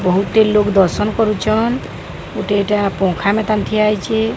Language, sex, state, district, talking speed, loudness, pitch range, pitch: Odia, male, Odisha, Sambalpur, 135 wpm, -16 LUFS, 200-215 Hz, 210 Hz